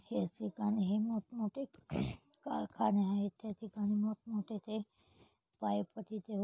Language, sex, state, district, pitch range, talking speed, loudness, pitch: Marathi, female, Maharashtra, Chandrapur, 200-215 Hz, 140 wpm, -38 LUFS, 210 Hz